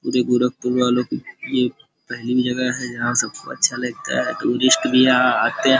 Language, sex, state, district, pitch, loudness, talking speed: Hindi, male, Uttar Pradesh, Gorakhpur, 125 Hz, -19 LUFS, 185 wpm